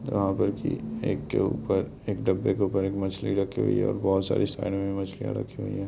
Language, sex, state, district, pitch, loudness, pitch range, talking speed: Hindi, male, Bihar, Jamui, 100 Hz, -28 LUFS, 95-100 Hz, 245 wpm